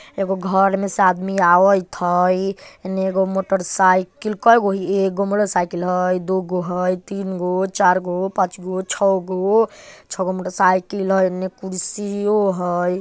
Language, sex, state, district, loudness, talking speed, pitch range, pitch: Bajjika, male, Bihar, Vaishali, -19 LUFS, 125 wpm, 185-195 Hz, 190 Hz